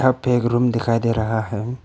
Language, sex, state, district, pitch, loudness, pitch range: Hindi, male, Arunachal Pradesh, Papum Pare, 120 Hz, -20 LUFS, 115-125 Hz